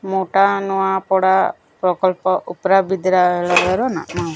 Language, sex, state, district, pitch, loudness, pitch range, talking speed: Odia, male, Odisha, Nuapada, 190 Hz, -17 LUFS, 180-195 Hz, 95 wpm